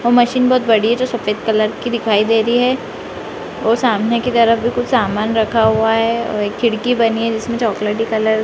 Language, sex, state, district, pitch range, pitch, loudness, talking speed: Hindi, female, Uttarakhand, Uttarkashi, 220-240 Hz, 230 Hz, -16 LUFS, 230 wpm